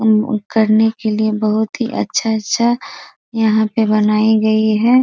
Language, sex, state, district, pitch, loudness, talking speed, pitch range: Hindi, female, Bihar, East Champaran, 220 Hz, -15 LUFS, 145 wpm, 215-225 Hz